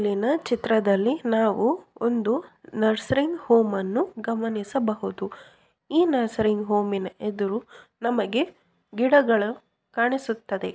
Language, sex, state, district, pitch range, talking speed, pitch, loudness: Kannada, female, Karnataka, Bellary, 210-250 Hz, 90 wpm, 225 Hz, -24 LUFS